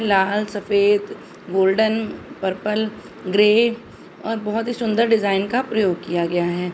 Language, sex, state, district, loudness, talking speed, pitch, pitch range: Hindi, female, Uttar Pradesh, Jalaun, -20 LUFS, 135 wpm, 210 Hz, 190-220 Hz